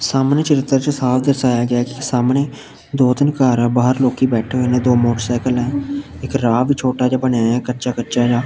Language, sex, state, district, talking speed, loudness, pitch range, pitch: Punjabi, male, Punjab, Pathankot, 220 wpm, -17 LUFS, 120-135 Hz, 125 Hz